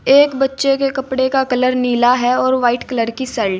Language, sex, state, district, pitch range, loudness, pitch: Hindi, female, Uttar Pradesh, Saharanpur, 245-270 Hz, -16 LUFS, 260 Hz